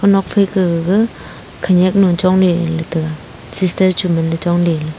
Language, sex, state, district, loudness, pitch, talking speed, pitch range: Wancho, female, Arunachal Pradesh, Longding, -14 LUFS, 180 Hz, 155 wpm, 165-190 Hz